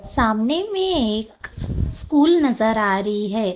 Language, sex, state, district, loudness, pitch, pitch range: Hindi, female, Maharashtra, Gondia, -18 LUFS, 225 Hz, 215-300 Hz